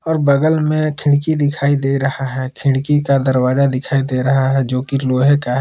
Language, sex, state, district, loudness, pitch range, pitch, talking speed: Hindi, male, Jharkhand, Palamu, -16 LUFS, 130-145 Hz, 135 Hz, 215 wpm